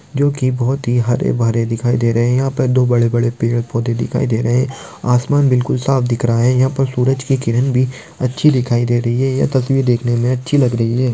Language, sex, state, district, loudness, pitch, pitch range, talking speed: Hindi, male, Maharashtra, Aurangabad, -16 LUFS, 125 Hz, 120-130 Hz, 235 wpm